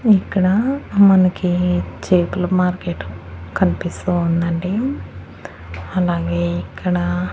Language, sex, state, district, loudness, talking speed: Telugu, female, Andhra Pradesh, Annamaya, -18 LUFS, 75 wpm